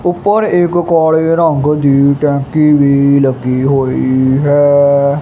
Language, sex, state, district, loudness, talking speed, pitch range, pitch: Punjabi, male, Punjab, Kapurthala, -11 LUFS, 115 wpm, 140-160 Hz, 145 Hz